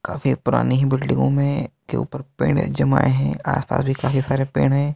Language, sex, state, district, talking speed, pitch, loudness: Hindi, male, Bihar, Katihar, 205 wpm, 135 Hz, -20 LUFS